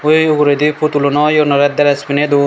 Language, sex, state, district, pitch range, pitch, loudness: Chakma, male, Tripura, Dhalai, 145-150 Hz, 145 Hz, -12 LUFS